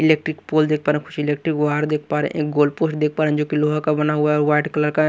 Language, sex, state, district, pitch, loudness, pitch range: Hindi, male, Haryana, Rohtak, 150 Hz, -20 LUFS, 150-155 Hz